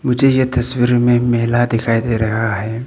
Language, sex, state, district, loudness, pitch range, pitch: Hindi, male, Arunachal Pradesh, Papum Pare, -15 LUFS, 115-125 Hz, 120 Hz